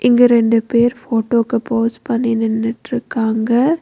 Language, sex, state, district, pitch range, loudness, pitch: Tamil, female, Tamil Nadu, Nilgiris, 225-245 Hz, -16 LUFS, 235 Hz